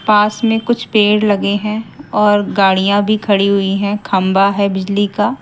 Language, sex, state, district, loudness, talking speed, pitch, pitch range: Hindi, female, Haryana, Jhajjar, -14 LUFS, 175 wpm, 205 Hz, 200-210 Hz